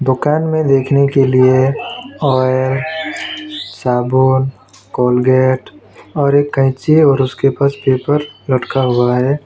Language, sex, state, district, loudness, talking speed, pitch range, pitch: Hindi, male, West Bengal, Alipurduar, -14 LUFS, 115 wpm, 130-145 Hz, 135 Hz